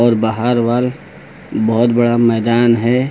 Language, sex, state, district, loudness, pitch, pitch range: Hindi, male, Uttar Pradesh, Lucknow, -14 LUFS, 120 Hz, 115-120 Hz